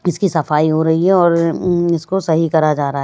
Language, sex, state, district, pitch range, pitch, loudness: Hindi, male, Bihar, West Champaran, 155-175 Hz, 165 Hz, -15 LUFS